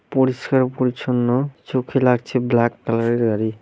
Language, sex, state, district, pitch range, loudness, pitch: Bengali, male, West Bengal, Malda, 120-130 Hz, -20 LUFS, 125 Hz